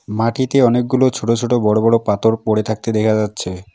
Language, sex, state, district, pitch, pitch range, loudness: Bengali, male, West Bengal, Alipurduar, 110 Hz, 105-120 Hz, -16 LUFS